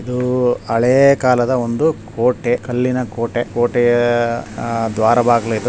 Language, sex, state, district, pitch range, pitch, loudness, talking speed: Kannada, male, Karnataka, Shimoga, 115-125 Hz, 120 Hz, -16 LUFS, 135 wpm